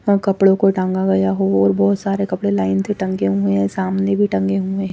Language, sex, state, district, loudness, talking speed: Hindi, female, Chandigarh, Chandigarh, -17 LUFS, 230 wpm